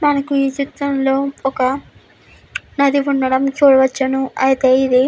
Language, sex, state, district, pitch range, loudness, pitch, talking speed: Telugu, female, Andhra Pradesh, Guntur, 265-280 Hz, -16 LUFS, 270 Hz, 130 wpm